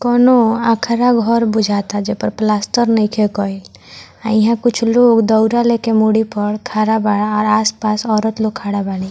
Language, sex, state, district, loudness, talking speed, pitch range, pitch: Bhojpuri, female, Bihar, Muzaffarpur, -15 LUFS, 165 wpm, 210-235 Hz, 220 Hz